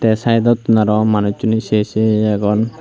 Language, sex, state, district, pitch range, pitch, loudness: Chakma, male, Tripura, Unakoti, 105-115 Hz, 110 Hz, -15 LUFS